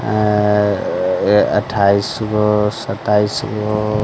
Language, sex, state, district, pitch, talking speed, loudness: Hindi, male, Bihar, West Champaran, 105 Hz, 75 wpm, -16 LUFS